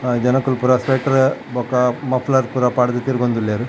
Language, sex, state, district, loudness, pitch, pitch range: Tulu, male, Karnataka, Dakshina Kannada, -18 LUFS, 125 Hz, 125-130 Hz